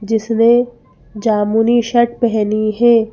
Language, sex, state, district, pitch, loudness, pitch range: Hindi, female, Madhya Pradesh, Bhopal, 225 Hz, -14 LUFS, 215-235 Hz